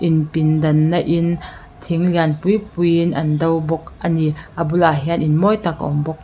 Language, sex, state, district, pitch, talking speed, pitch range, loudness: Mizo, female, Mizoram, Aizawl, 165 Hz, 220 wpm, 155-170 Hz, -18 LUFS